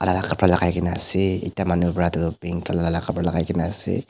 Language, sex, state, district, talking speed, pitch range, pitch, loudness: Nagamese, male, Nagaland, Dimapur, 265 wpm, 85-95 Hz, 85 Hz, -22 LUFS